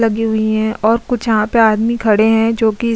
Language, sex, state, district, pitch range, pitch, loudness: Hindi, female, Uttar Pradesh, Budaun, 220-230 Hz, 225 Hz, -14 LUFS